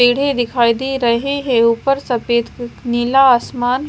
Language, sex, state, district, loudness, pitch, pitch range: Hindi, female, Himachal Pradesh, Shimla, -15 LUFS, 245 Hz, 235-270 Hz